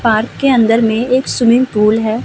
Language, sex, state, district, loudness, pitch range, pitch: Hindi, female, Bihar, Vaishali, -12 LUFS, 220-250 Hz, 230 Hz